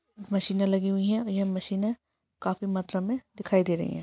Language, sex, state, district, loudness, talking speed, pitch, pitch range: Hindi, female, West Bengal, Purulia, -28 LUFS, 195 wpm, 195 Hz, 190-205 Hz